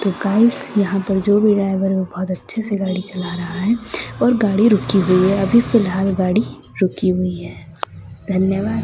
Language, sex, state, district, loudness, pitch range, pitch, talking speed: Hindi, female, Delhi, New Delhi, -18 LUFS, 185-215 Hz, 195 Hz, 190 wpm